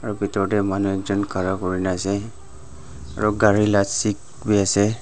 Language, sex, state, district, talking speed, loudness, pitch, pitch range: Nagamese, male, Nagaland, Dimapur, 180 wpm, -21 LUFS, 100 Hz, 95-105 Hz